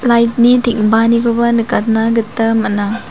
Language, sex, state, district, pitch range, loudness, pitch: Garo, female, Meghalaya, South Garo Hills, 225-235 Hz, -13 LUFS, 230 Hz